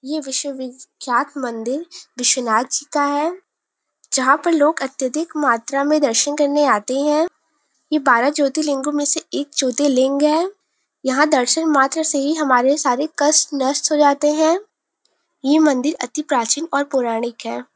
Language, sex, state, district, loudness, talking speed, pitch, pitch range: Hindi, female, Uttar Pradesh, Varanasi, -18 LUFS, 150 wpm, 290 Hz, 265-305 Hz